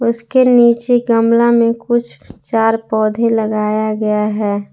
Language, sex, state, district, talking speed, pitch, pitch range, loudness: Hindi, female, Jharkhand, Palamu, 125 wpm, 230 Hz, 215-235 Hz, -14 LUFS